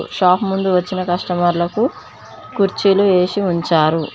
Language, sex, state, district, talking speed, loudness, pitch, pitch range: Telugu, female, Telangana, Mahabubabad, 100 wpm, -16 LUFS, 180 Hz, 175-195 Hz